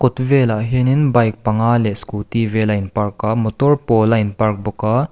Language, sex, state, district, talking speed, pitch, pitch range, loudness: Mizo, male, Mizoram, Aizawl, 210 wpm, 110 Hz, 110-125 Hz, -16 LUFS